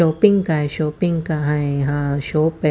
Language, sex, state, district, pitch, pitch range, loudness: Hindi, female, Chandigarh, Chandigarh, 155 Hz, 145-165 Hz, -19 LUFS